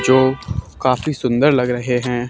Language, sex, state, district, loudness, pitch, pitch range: Hindi, male, Haryana, Charkhi Dadri, -18 LUFS, 125 Hz, 120-130 Hz